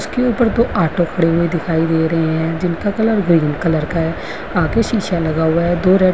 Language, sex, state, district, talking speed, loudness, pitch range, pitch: Hindi, female, Uttarakhand, Uttarkashi, 215 wpm, -16 LUFS, 165-195 Hz, 170 Hz